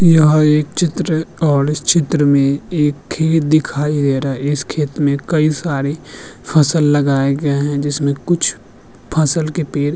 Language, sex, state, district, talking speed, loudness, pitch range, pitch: Hindi, male, Uttar Pradesh, Hamirpur, 170 wpm, -15 LUFS, 145-160 Hz, 150 Hz